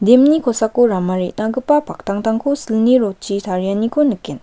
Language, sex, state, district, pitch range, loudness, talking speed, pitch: Garo, female, Meghalaya, West Garo Hills, 200-255 Hz, -16 LUFS, 120 wpm, 225 Hz